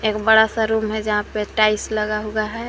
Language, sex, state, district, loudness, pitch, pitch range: Hindi, female, Uttar Pradesh, Lucknow, -19 LUFS, 215 Hz, 215-220 Hz